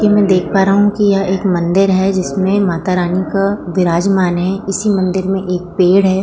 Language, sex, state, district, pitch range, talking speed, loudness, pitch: Hindi, female, Bihar, Saran, 180-195 Hz, 210 wpm, -14 LUFS, 190 Hz